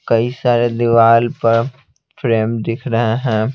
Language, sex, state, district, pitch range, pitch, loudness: Hindi, male, Bihar, Patna, 115-120 Hz, 115 Hz, -15 LUFS